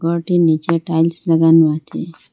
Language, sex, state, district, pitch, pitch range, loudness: Bengali, female, Assam, Hailakandi, 165 Hz, 160-170 Hz, -15 LUFS